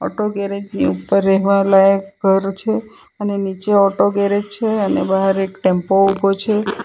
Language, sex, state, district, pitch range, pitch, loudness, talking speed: Gujarati, female, Gujarat, Valsad, 195-205 Hz, 195 Hz, -16 LUFS, 165 wpm